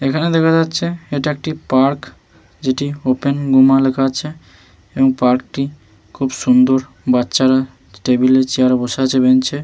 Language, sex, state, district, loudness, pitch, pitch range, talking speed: Bengali, male, West Bengal, Malda, -15 LUFS, 130 Hz, 130-140 Hz, 145 wpm